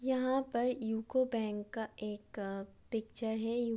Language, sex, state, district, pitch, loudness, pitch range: Hindi, female, Bihar, Gopalganj, 225 Hz, -37 LUFS, 215-250 Hz